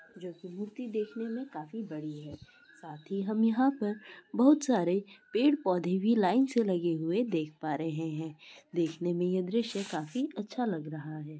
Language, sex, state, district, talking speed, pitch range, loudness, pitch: Maithili, female, Bihar, Madhepura, 185 wpm, 160-225 Hz, -31 LUFS, 185 Hz